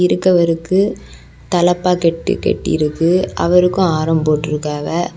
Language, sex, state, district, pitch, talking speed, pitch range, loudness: Tamil, female, Tamil Nadu, Kanyakumari, 175 Hz, 105 wpm, 155-180 Hz, -15 LUFS